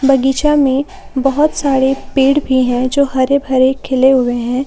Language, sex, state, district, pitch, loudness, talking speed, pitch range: Hindi, female, Jharkhand, Palamu, 270 Hz, -13 LUFS, 165 wpm, 260-280 Hz